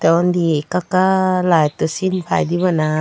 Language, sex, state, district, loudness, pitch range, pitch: Chakma, female, Tripura, Dhalai, -17 LUFS, 160-185 Hz, 175 Hz